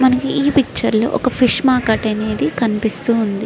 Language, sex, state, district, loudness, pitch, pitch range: Telugu, female, Andhra Pradesh, Srikakulam, -16 LUFS, 230 Hz, 220-260 Hz